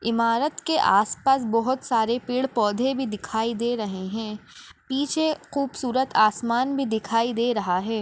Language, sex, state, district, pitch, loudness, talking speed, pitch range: Hindi, female, Maharashtra, Nagpur, 235 Hz, -24 LUFS, 150 wpm, 220-265 Hz